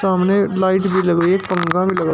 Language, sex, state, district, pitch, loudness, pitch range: Hindi, male, Uttar Pradesh, Shamli, 185 Hz, -17 LUFS, 180-190 Hz